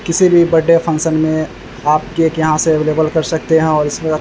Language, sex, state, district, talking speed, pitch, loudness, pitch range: Hindi, male, Bihar, Vaishali, 230 wpm, 160 Hz, -14 LUFS, 155-165 Hz